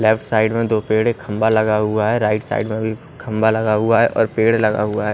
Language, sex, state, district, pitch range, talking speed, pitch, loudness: Hindi, male, Odisha, Nuapada, 110-115 Hz, 270 wpm, 110 Hz, -17 LUFS